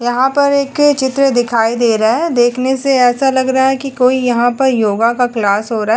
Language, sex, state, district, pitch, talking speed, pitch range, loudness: Hindi, female, Goa, North and South Goa, 250 Hz, 250 wpm, 235-265 Hz, -13 LUFS